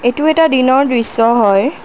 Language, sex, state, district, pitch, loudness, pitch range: Assamese, female, Assam, Kamrup Metropolitan, 255 Hz, -12 LUFS, 230-290 Hz